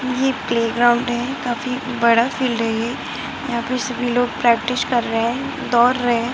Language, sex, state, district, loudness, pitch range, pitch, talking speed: Hindi, female, Bihar, Muzaffarpur, -19 LUFS, 235-255 Hz, 245 Hz, 190 wpm